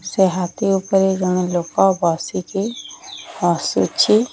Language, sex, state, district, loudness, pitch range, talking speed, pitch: Odia, female, Odisha, Nuapada, -18 LUFS, 180-195 Hz, 110 wpm, 190 Hz